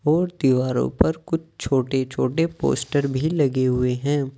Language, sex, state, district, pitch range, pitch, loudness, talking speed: Hindi, male, Uttar Pradesh, Saharanpur, 130-160 Hz, 135 Hz, -22 LUFS, 135 wpm